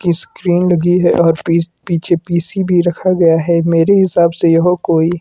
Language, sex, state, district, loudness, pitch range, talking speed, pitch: Hindi, male, Himachal Pradesh, Shimla, -13 LUFS, 165-180 Hz, 185 wpm, 170 Hz